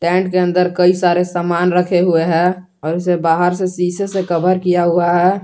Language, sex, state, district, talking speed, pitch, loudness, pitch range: Hindi, male, Jharkhand, Garhwa, 210 wpm, 180 Hz, -15 LUFS, 175-180 Hz